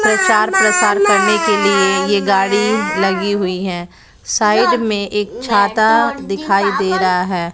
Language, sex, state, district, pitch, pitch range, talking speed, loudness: Hindi, female, Bihar, West Champaran, 200 Hz, 190-215 Hz, 145 wpm, -14 LUFS